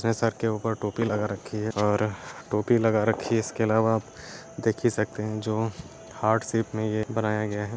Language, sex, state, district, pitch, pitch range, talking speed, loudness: Hindi, male, Uttar Pradesh, Etah, 110 Hz, 105-115 Hz, 200 wpm, -26 LUFS